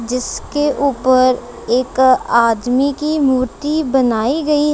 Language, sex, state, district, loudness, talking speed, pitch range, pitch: Hindi, female, Punjab, Kapurthala, -15 LUFS, 100 wpm, 250-290 Hz, 260 Hz